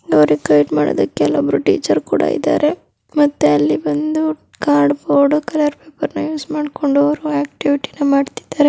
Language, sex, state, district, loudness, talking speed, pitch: Kannada, female, Karnataka, Dakshina Kannada, -16 LUFS, 145 wpm, 285 Hz